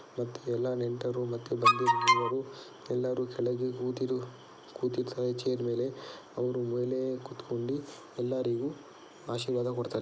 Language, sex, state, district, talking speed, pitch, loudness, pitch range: Kannada, male, Karnataka, Dakshina Kannada, 110 wpm, 125 Hz, -32 LUFS, 120-130 Hz